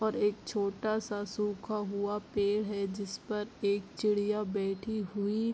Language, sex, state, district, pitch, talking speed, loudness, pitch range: Hindi, female, Bihar, Bhagalpur, 205 Hz, 150 wpm, -33 LUFS, 200-215 Hz